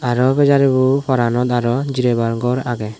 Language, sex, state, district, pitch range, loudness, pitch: Chakma, male, Tripura, West Tripura, 120-135 Hz, -16 LUFS, 125 Hz